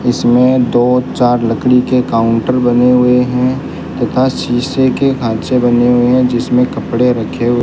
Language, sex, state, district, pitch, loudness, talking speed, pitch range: Hindi, male, Rajasthan, Bikaner, 125 Hz, -12 LUFS, 165 wpm, 120-125 Hz